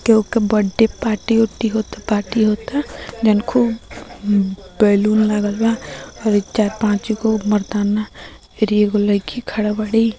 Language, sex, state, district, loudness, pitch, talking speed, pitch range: Bhojpuri, female, Bihar, Gopalganj, -18 LUFS, 215 Hz, 125 wpm, 210-225 Hz